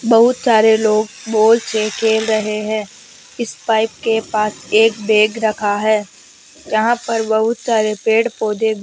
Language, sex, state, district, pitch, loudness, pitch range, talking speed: Hindi, female, Rajasthan, Jaipur, 220 Hz, -16 LUFS, 215-225 Hz, 165 wpm